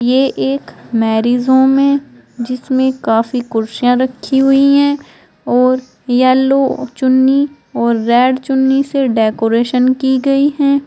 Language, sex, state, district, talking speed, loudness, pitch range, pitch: Hindi, female, Uttar Pradesh, Shamli, 120 wpm, -13 LUFS, 240-270 Hz, 260 Hz